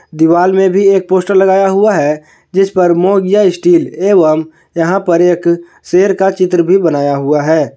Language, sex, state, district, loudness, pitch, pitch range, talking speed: Hindi, male, Jharkhand, Garhwa, -11 LUFS, 180 Hz, 165-195 Hz, 175 wpm